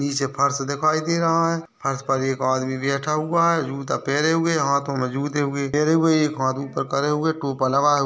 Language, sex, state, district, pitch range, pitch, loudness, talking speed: Hindi, male, Bihar, Purnia, 135-155 Hz, 140 Hz, -22 LUFS, 225 wpm